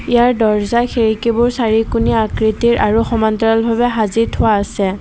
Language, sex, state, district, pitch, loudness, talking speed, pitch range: Assamese, female, Assam, Kamrup Metropolitan, 225 Hz, -15 LUFS, 130 wpm, 220-235 Hz